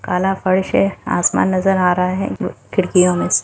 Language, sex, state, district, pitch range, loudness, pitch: Hindi, female, Bihar, Kishanganj, 180-190 Hz, -17 LUFS, 185 Hz